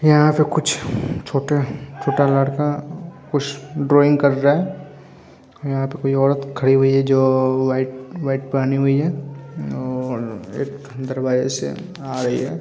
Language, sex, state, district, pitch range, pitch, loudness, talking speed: Hindi, male, Bihar, Vaishali, 130-145 Hz, 140 Hz, -19 LUFS, 145 wpm